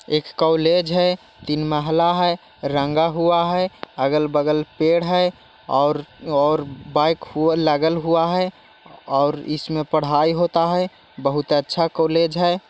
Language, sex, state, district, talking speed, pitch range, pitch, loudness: Hindi, male, Bihar, Jahanabad, 140 wpm, 150-170 Hz, 160 Hz, -20 LUFS